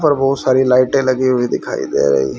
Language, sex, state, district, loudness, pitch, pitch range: Hindi, male, Haryana, Rohtak, -15 LUFS, 130 Hz, 125-135 Hz